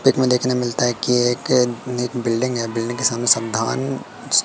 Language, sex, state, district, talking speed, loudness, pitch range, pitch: Hindi, male, Madhya Pradesh, Katni, 175 wpm, -19 LUFS, 120-125 Hz, 125 Hz